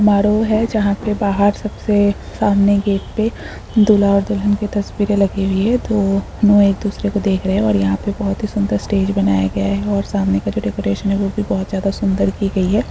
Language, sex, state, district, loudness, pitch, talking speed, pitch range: Hindi, female, Uttar Pradesh, Deoria, -17 LUFS, 200 Hz, 230 wpm, 190-205 Hz